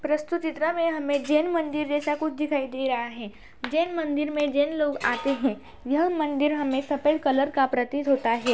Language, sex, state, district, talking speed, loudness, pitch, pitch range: Hindi, female, Uttar Pradesh, Budaun, 205 wpm, -25 LUFS, 290 Hz, 270-305 Hz